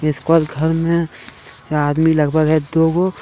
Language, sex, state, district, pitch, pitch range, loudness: Hindi, male, Jharkhand, Deoghar, 160 Hz, 150-165 Hz, -16 LUFS